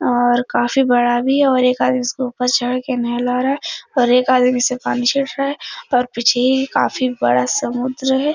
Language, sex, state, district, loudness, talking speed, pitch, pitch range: Hindi, female, Bihar, Araria, -17 LUFS, 215 wpm, 250 Hz, 245-265 Hz